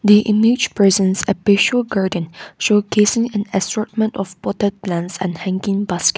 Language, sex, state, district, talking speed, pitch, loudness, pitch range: English, female, Nagaland, Kohima, 145 wpm, 200 Hz, -17 LUFS, 190-210 Hz